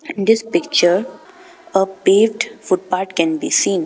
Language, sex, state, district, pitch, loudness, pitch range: English, female, Arunachal Pradesh, Papum Pare, 195 Hz, -17 LUFS, 185-225 Hz